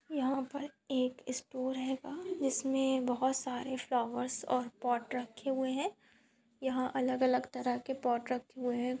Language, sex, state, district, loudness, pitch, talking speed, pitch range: Hindi, female, Goa, North and South Goa, -35 LUFS, 255 Hz, 145 wpm, 245-265 Hz